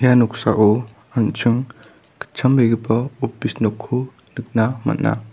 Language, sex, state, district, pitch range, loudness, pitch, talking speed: Garo, male, Meghalaya, West Garo Hills, 110-130 Hz, -19 LUFS, 120 Hz, 90 wpm